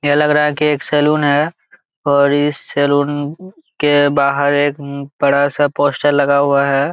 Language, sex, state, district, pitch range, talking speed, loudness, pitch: Hindi, male, Jharkhand, Jamtara, 140-150 Hz, 175 wpm, -15 LUFS, 145 Hz